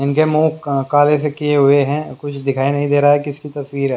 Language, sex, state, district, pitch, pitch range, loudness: Hindi, male, Haryana, Jhajjar, 145 Hz, 140-150 Hz, -16 LUFS